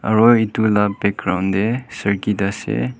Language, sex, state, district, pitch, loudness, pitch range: Nagamese, male, Nagaland, Kohima, 105 Hz, -18 LUFS, 100-110 Hz